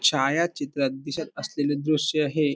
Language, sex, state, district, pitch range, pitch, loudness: Marathi, male, Maharashtra, Pune, 140-155 Hz, 145 Hz, -25 LUFS